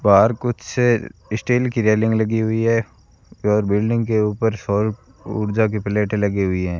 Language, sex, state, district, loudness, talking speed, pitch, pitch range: Hindi, male, Rajasthan, Bikaner, -20 LUFS, 165 wpm, 110 Hz, 105-115 Hz